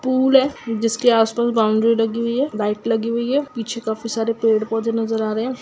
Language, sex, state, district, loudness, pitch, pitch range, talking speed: Hindi, female, Bihar, Sitamarhi, -19 LUFS, 230 Hz, 225-240 Hz, 235 wpm